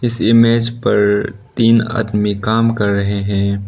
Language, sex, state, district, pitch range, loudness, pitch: Hindi, male, Arunachal Pradesh, Lower Dibang Valley, 100-115 Hz, -15 LUFS, 110 Hz